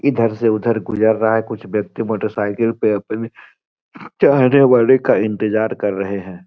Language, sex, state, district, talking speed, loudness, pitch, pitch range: Hindi, male, Bihar, Gopalganj, 175 wpm, -17 LUFS, 110 Hz, 105-115 Hz